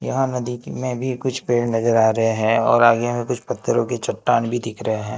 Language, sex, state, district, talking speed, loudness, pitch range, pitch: Hindi, male, Maharashtra, Gondia, 255 wpm, -20 LUFS, 115-125 Hz, 120 Hz